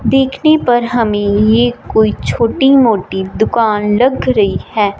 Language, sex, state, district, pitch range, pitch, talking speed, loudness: Hindi, female, Punjab, Fazilka, 210-250 Hz, 225 Hz, 130 wpm, -12 LUFS